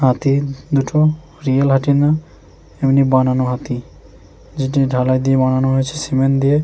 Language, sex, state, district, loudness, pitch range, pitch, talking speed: Bengali, male, West Bengal, Jhargram, -16 LUFS, 130-140 Hz, 135 Hz, 125 wpm